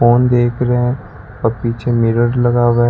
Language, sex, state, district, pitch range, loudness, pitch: Hindi, male, Rajasthan, Bikaner, 115-120 Hz, -15 LUFS, 120 Hz